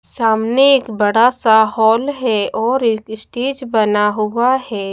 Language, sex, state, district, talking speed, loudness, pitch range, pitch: Hindi, female, Bihar, Katihar, 135 wpm, -15 LUFS, 215-250 Hz, 225 Hz